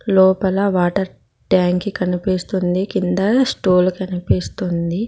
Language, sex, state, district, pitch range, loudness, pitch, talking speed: Telugu, female, Telangana, Mahabubabad, 180-195 Hz, -18 LUFS, 185 Hz, 85 wpm